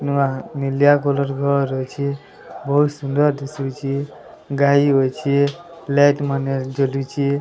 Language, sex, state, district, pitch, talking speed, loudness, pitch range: Odia, male, Odisha, Sambalpur, 140 Hz, 105 wpm, -19 LUFS, 135-145 Hz